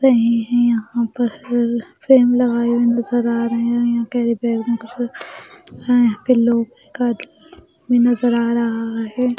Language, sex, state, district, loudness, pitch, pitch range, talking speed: Hindi, female, Maharashtra, Mumbai Suburban, -18 LUFS, 235 Hz, 235-245 Hz, 140 wpm